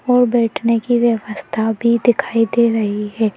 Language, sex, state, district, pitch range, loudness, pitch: Hindi, female, Madhya Pradesh, Bhopal, 220-240 Hz, -16 LUFS, 230 Hz